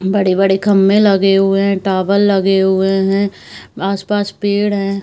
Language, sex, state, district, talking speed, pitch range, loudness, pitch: Hindi, female, Bihar, Saharsa, 190 wpm, 195-200 Hz, -14 LUFS, 195 Hz